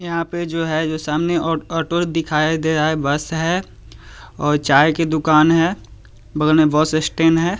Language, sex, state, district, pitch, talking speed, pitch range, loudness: Hindi, male, Bihar, Muzaffarpur, 155 Hz, 180 wpm, 150-165 Hz, -18 LUFS